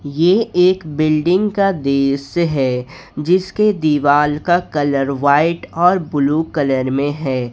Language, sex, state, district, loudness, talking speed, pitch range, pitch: Hindi, male, Jharkhand, Ranchi, -16 LUFS, 125 wpm, 140-175 Hz, 155 Hz